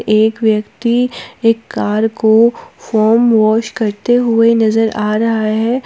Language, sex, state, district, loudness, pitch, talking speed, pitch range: Hindi, female, Jharkhand, Palamu, -13 LUFS, 225 Hz, 135 wpm, 215-230 Hz